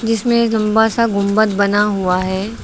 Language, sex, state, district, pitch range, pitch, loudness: Hindi, female, Uttar Pradesh, Lucknow, 200-225 Hz, 215 Hz, -15 LUFS